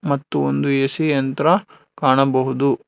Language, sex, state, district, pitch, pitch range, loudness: Kannada, male, Karnataka, Bangalore, 135 Hz, 130-140 Hz, -19 LUFS